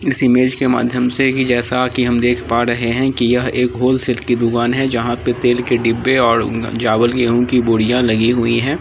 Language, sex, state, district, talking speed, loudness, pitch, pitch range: Angika, male, Bihar, Samastipur, 230 wpm, -15 LUFS, 120 Hz, 120-125 Hz